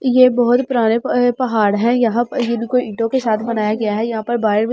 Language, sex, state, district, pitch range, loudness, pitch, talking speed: Hindi, male, Delhi, New Delhi, 220-245 Hz, -16 LUFS, 235 Hz, 205 wpm